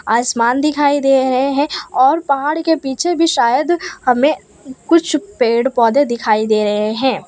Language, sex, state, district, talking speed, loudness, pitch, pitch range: Hindi, female, Gujarat, Valsad, 155 wpm, -15 LUFS, 265 Hz, 235-300 Hz